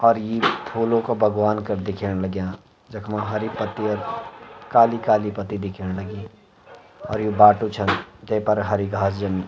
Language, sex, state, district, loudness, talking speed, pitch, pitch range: Garhwali, male, Uttarakhand, Uttarkashi, -22 LUFS, 160 wpm, 105 Hz, 100-110 Hz